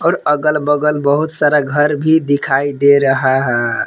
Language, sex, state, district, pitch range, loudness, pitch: Hindi, male, Jharkhand, Palamu, 140-150 Hz, -14 LUFS, 145 Hz